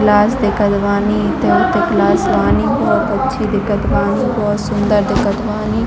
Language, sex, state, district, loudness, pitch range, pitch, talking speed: Hindi, female, Chhattisgarh, Bilaspur, -15 LUFS, 205-215 Hz, 210 Hz, 155 wpm